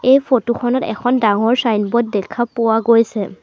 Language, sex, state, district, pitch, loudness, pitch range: Assamese, female, Assam, Sonitpur, 230 Hz, -16 LUFS, 220-240 Hz